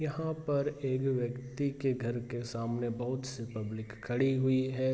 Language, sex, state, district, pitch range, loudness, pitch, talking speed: Hindi, male, Bihar, Vaishali, 120-135 Hz, -34 LUFS, 130 Hz, 170 wpm